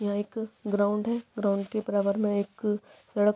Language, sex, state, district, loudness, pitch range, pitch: Hindi, female, Maharashtra, Aurangabad, -29 LUFS, 205-215 Hz, 210 Hz